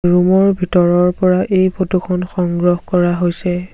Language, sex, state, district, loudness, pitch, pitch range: Assamese, male, Assam, Sonitpur, -15 LUFS, 180 Hz, 175-185 Hz